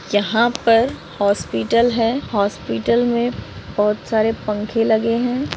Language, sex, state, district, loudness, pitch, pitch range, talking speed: Hindi, female, Maharashtra, Dhule, -19 LUFS, 225 Hz, 205-235 Hz, 120 wpm